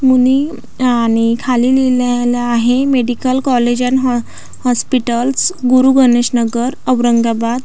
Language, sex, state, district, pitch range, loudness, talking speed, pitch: Marathi, female, Maharashtra, Aurangabad, 240-255 Hz, -13 LUFS, 110 wpm, 250 Hz